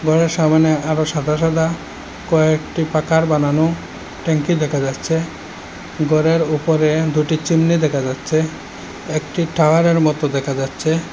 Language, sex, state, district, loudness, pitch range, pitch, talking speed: Bengali, male, Assam, Hailakandi, -17 LUFS, 155-160 Hz, 155 Hz, 120 wpm